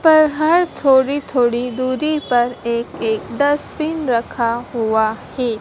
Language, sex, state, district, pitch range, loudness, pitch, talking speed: Hindi, female, Madhya Pradesh, Dhar, 235-295 Hz, -18 LUFS, 255 Hz, 130 wpm